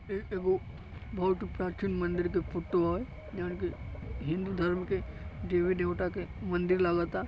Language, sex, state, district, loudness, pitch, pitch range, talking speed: Bhojpuri, male, Uttar Pradesh, Deoria, -33 LUFS, 180 Hz, 175-185 Hz, 140 wpm